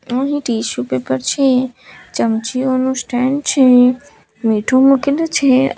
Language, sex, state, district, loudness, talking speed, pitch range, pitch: Gujarati, female, Gujarat, Valsad, -15 LUFS, 105 wpm, 235-270 Hz, 260 Hz